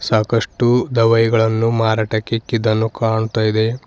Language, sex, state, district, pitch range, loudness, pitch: Kannada, male, Karnataka, Bidar, 110-115 Hz, -17 LUFS, 115 Hz